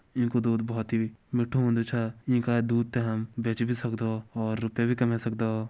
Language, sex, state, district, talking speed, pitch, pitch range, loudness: Garhwali, male, Uttarakhand, Uttarkashi, 200 wpm, 115 Hz, 115-120 Hz, -28 LUFS